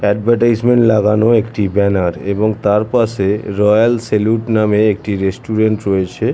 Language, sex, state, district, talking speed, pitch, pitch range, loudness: Bengali, male, West Bengal, Jhargram, 135 wpm, 105 Hz, 100-115 Hz, -14 LUFS